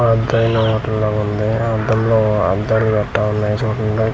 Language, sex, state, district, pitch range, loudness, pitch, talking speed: Telugu, male, Andhra Pradesh, Manyam, 105-110 Hz, -17 LUFS, 110 Hz, 160 wpm